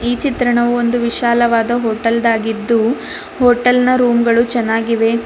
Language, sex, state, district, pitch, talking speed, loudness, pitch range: Kannada, female, Karnataka, Bidar, 235 Hz, 115 wpm, -14 LUFS, 230-245 Hz